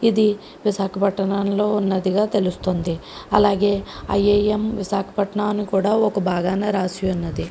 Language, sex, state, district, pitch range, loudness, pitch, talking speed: Telugu, female, Andhra Pradesh, Krishna, 190-210 Hz, -21 LUFS, 200 Hz, 110 wpm